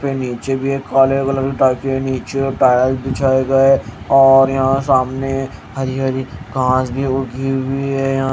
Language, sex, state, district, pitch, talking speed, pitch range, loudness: Hindi, male, Haryana, Jhajjar, 135 Hz, 195 wpm, 130-135 Hz, -16 LUFS